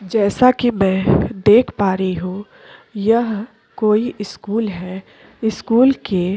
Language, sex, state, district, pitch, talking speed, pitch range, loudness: Hindi, female, Chhattisgarh, Korba, 210 Hz, 130 wpm, 190-225 Hz, -17 LUFS